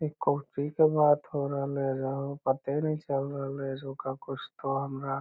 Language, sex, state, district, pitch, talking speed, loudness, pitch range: Magahi, male, Bihar, Lakhisarai, 140 Hz, 230 wpm, -30 LUFS, 135-145 Hz